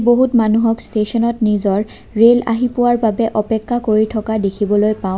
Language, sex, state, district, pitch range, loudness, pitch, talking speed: Assamese, female, Assam, Kamrup Metropolitan, 215-235 Hz, -15 LUFS, 220 Hz, 150 wpm